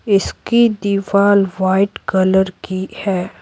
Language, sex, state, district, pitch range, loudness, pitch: Hindi, female, Bihar, Patna, 190-200 Hz, -16 LUFS, 195 Hz